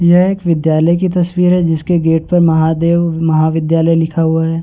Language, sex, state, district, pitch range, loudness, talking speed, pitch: Hindi, male, Uttar Pradesh, Varanasi, 160-175 Hz, -13 LUFS, 180 wpm, 165 Hz